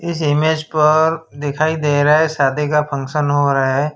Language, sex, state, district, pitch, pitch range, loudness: Hindi, male, Gujarat, Valsad, 150 Hz, 145-155 Hz, -16 LUFS